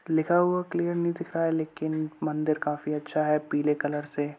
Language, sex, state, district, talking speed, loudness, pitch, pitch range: Hindi, male, Uttar Pradesh, Budaun, 220 wpm, -28 LUFS, 155 Hz, 150-170 Hz